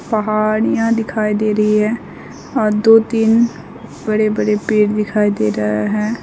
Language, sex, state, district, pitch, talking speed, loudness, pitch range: Hindi, female, West Bengal, Alipurduar, 215 Hz, 145 wpm, -15 LUFS, 210-220 Hz